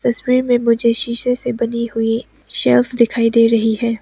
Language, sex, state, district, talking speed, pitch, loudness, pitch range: Hindi, female, Arunachal Pradesh, Papum Pare, 180 wpm, 235 Hz, -15 LUFS, 230-245 Hz